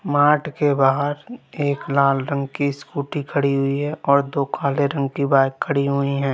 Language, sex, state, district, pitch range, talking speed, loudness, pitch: Hindi, male, Bihar, Gaya, 140-145 Hz, 190 wpm, -20 LUFS, 140 Hz